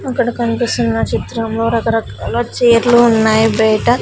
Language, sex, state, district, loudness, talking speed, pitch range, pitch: Telugu, female, Andhra Pradesh, Sri Satya Sai, -14 LUFS, 105 wpm, 220-240 Hz, 230 Hz